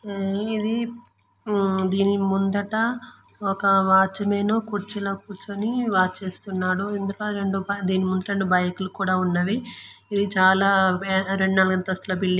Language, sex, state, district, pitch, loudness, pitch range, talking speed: Telugu, female, Andhra Pradesh, Guntur, 195 Hz, -23 LUFS, 190-205 Hz, 110 wpm